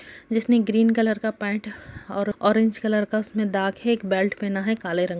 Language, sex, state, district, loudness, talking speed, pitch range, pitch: Hindi, female, Bihar, Jamui, -23 LUFS, 205 wpm, 200-225 Hz, 215 Hz